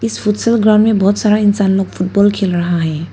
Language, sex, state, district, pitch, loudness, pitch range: Hindi, female, Arunachal Pradesh, Papum Pare, 205 Hz, -13 LUFS, 185-210 Hz